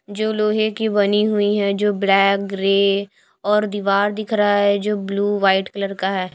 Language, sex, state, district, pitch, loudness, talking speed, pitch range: Hindi, female, Chhattisgarh, Raipur, 205 Hz, -18 LUFS, 190 wpm, 195-210 Hz